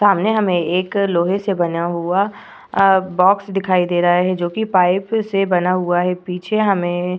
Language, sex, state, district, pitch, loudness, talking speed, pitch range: Hindi, female, Uttar Pradesh, Etah, 185 Hz, -17 LUFS, 185 wpm, 175-195 Hz